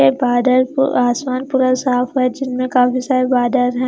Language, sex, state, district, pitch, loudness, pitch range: Hindi, female, Himachal Pradesh, Shimla, 255 Hz, -16 LUFS, 245-255 Hz